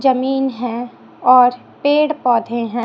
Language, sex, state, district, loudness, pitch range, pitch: Hindi, female, Chhattisgarh, Raipur, -16 LUFS, 240-270 Hz, 250 Hz